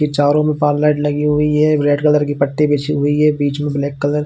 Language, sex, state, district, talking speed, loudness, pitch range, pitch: Hindi, male, Chhattisgarh, Bilaspur, 265 wpm, -15 LUFS, 145-150 Hz, 150 Hz